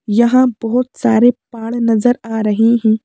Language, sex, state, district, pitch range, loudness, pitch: Hindi, female, Madhya Pradesh, Bhopal, 225-245 Hz, -14 LUFS, 235 Hz